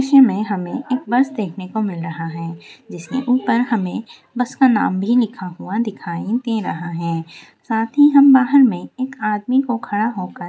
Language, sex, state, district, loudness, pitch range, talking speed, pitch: Hindi, female, Rajasthan, Nagaur, -18 LUFS, 185-255 Hz, 195 wpm, 225 Hz